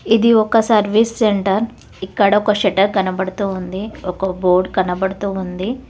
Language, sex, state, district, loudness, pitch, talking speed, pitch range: Telugu, female, Telangana, Hyderabad, -17 LUFS, 195 Hz, 130 wpm, 190-215 Hz